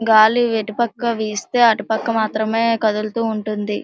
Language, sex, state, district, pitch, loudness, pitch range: Telugu, female, Andhra Pradesh, Srikakulam, 220 Hz, -18 LUFS, 215-230 Hz